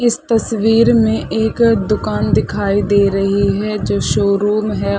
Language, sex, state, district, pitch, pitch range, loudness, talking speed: Hindi, female, Chhattisgarh, Sarguja, 215 Hz, 200-225 Hz, -15 LUFS, 155 wpm